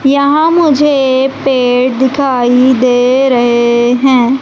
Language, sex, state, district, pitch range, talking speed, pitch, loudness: Hindi, female, Madhya Pradesh, Umaria, 245-270 Hz, 95 wpm, 260 Hz, -10 LUFS